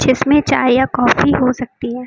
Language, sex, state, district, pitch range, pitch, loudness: Hindi, female, Uttar Pradesh, Lucknow, 250-265 Hz, 255 Hz, -14 LUFS